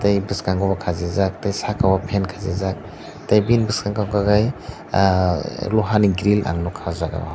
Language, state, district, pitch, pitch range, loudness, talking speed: Kokborok, Tripura, Dhalai, 100 Hz, 90-105 Hz, -20 LUFS, 170 wpm